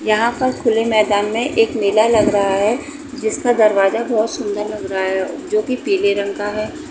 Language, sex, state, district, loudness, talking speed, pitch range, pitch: Hindi, female, Uttar Pradesh, Etah, -17 LUFS, 200 wpm, 205-245 Hz, 215 Hz